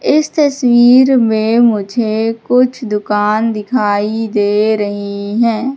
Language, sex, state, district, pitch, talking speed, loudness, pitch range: Hindi, female, Madhya Pradesh, Katni, 225 Hz, 105 wpm, -13 LUFS, 210-250 Hz